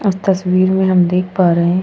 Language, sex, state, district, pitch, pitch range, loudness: Hindi, female, Goa, North and South Goa, 185 Hz, 180-190 Hz, -14 LUFS